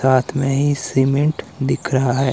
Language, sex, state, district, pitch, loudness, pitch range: Hindi, male, Himachal Pradesh, Shimla, 135 Hz, -18 LUFS, 130-140 Hz